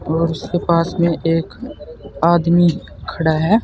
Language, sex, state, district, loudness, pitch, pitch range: Hindi, male, Uttar Pradesh, Saharanpur, -17 LUFS, 165 Hz, 160-170 Hz